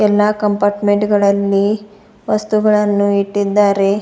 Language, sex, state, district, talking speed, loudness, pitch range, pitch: Kannada, female, Karnataka, Bidar, 75 wpm, -14 LUFS, 200-210 Hz, 205 Hz